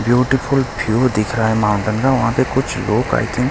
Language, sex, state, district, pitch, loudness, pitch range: Hindi, male, Delhi, New Delhi, 115 Hz, -17 LUFS, 110-130 Hz